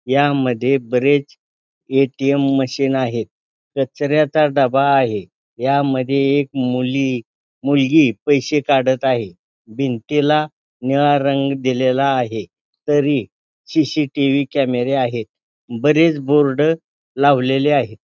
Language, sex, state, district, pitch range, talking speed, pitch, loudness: Marathi, male, Maharashtra, Pune, 130-145 Hz, 95 wpm, 135 Hz, -17 LUFS